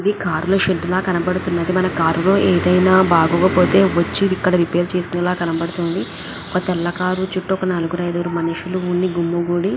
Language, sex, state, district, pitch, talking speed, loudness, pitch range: Telugu, female, Andhra Pradesh, Visakhapatnam, 180 Hz, 155 wpm, -18 LUFS, 175-185 Hz